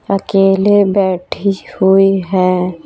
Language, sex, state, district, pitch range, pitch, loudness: Hindi, female, Bihar, Patna, 185-195 Hz, 195 Hz, -13 LUFS